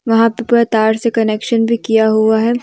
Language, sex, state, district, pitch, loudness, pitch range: Hindi, female, Jharkhand, Deoghar, 225 Hz, -14 LUFS, 220-235 Hz